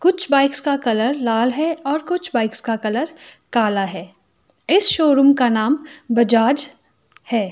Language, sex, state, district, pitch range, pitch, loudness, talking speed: Hindi, female, Himachal Pradesh, Shimla, 230-310 Hz, 275 Hz, -17 LUFS, 150 wpm